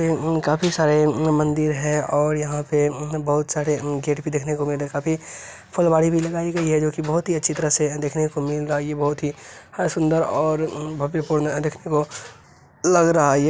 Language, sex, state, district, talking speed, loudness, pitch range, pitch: Hindi, male, Bihar, Gaya, 200 wpm, -21 LUFS, 150-160 Hz, 150 Hz